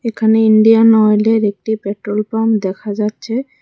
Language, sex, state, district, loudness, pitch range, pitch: Bengali, female, Tripura, West Tripura, -14 LUFS, 210-225 Hz, 220 Hz